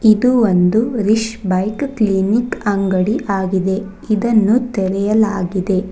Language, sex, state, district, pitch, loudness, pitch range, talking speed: Kannada, female, Karnataka, Bangalore, 205 Hz, -16 LUFS, 190-225 Hz, 90 wpm